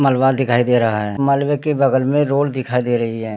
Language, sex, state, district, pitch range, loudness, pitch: Hindi, male, Uttarakhand, Tehri Garhwal, 120-140 Hz, -17 LUFS, 130 Hz